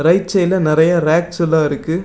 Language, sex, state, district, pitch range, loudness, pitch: Tamil, male, Tamil Nadu, Namakkal, 160-180 Hz, -15 LUFS, 170 Hz